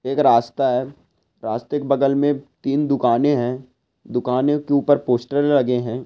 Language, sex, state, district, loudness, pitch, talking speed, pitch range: Hindi, male, Andhra Pradesh, Guntur, -19 LUFS, 140 Hz, 160 wpm, 125-145 Hz